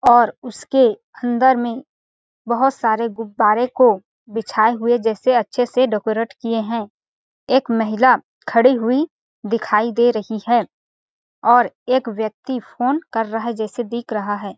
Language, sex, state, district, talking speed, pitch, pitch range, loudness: Hindi, female, Chhattisgarh, Balrampur, 145 wpm, 235 Hz, 220-250 Hz, -18 LUFS